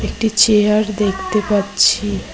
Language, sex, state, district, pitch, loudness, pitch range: Bengali, female, West Bengal, Cooch Behar, 210 Hz, -15 LUFS, 205-215 Hz